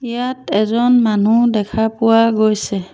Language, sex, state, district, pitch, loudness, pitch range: Assamese, female, Assam, Sonitpur, 225 Hz, -15 LUFS, 215-235 Hz